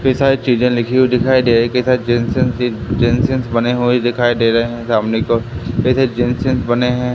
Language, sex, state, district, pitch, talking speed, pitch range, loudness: Hindi, male, Madhya Pradesh, Katni, 120 Hz, 185 wpm, 115-125 Hz, -15 LUFS